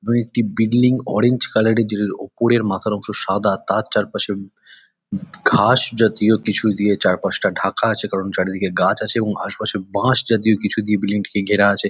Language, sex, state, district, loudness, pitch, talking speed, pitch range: Bengali, male, West Bengal, Kolkata, -18 LUFS, 105 Hz, 165 wpm, 100-115 Hz